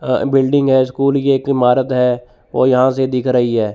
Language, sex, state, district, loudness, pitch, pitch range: Hindi, male, Chandigarh, Chandigarh, -15 LUFS, 130 Hz, 125-135 Hz